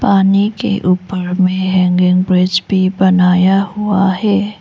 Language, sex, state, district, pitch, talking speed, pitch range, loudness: Hindi, female, Arunachal Pradesh, Lower Dibang Valley, 190 Hz, 130 wpm, 180-200 Hz, -13 LUFS